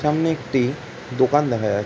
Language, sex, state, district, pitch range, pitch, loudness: Bengali, male, West Bengal, Jhargram, 125-150 Hz, 130 Hz, -21 LUFS